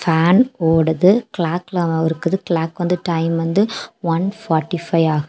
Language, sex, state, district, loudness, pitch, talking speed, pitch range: Tamil, female, Tamil Nadu, Kanyakumari, -18 LUFS, 170 Hz, 135 wpm, 165-180 Hz